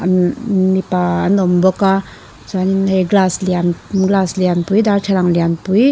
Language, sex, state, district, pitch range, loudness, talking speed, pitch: Mizo, female, Mizoram, Aizawl, 180-195 Hz, -15 LUFS, 130 wpm, 190 Hz